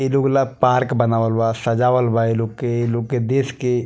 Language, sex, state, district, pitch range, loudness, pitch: Bhojpuri, male, Bihar, East Champaran, 115-130 Hz, -19 LUFS, 120 Hz